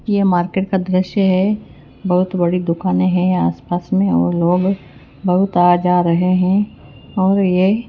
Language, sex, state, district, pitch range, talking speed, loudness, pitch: Hindi, female, Chhattisgarh, Raipur, 175-190 Hz, 160 wpm, -16 LUFS, 185 Hz